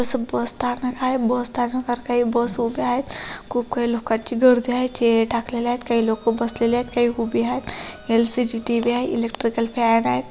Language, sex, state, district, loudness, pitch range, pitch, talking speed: Marathi, female, Maharashtra, Pune, -21 LUFS, 230-245 Hz, 235 Hz, 180 wpm